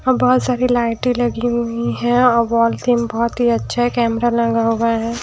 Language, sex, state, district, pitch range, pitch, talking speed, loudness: Hindi, female, Haryana, Jhajjar, 230-245 Hz, 235 Hz, 205 wpm, -17 LUFS